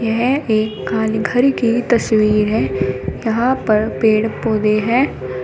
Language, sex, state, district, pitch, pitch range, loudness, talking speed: Hindi, female, Uttar Pradesh, Shamli, 220 Hz, 215-235 Hz, -16 LUFS, 120 wpm